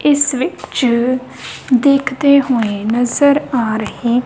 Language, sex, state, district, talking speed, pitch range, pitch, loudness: Punjabi, female, Punjab, Kapurthala, 100 wpm, 235-280 Hz, 255 Hz, -15 LUFS